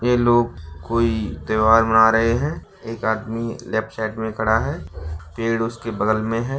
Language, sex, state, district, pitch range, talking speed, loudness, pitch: Hindi, male, Bihar, Bhagalpur, 110-115 Hz, 175 wpm, -20 LUFS, 110 Hz